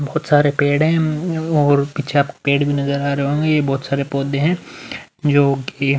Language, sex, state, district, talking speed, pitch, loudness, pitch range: Hindi, male, Uttar Pradesh, Muzaffarnagar, 200 wpm, 145 Hz, -18 LUFS, 140-150 Hz